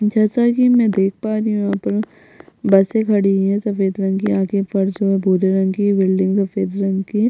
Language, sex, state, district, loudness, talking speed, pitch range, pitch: Hindi, female, Chhattisgarh, Bastar, -17 LUFS, 215 wpm, 195-210 Hz, 200 Hz